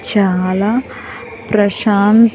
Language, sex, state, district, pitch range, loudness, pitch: Telugu, female, Andhra Pradesh, Sri Satya Sai, 200-220 Hz, -13 LUFS, 205 Hz